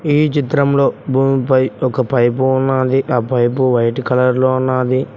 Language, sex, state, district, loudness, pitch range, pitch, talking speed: Telugu, male, Telangana, Mahabubabad, -15 LUFS, 125-135 Hz, 130 Hz, 140 wpm